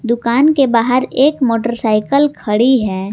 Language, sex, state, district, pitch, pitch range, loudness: Hindi, female, Jharkhand, Garhwa, 235 Hz, 225-270 Hz, -14 LUFS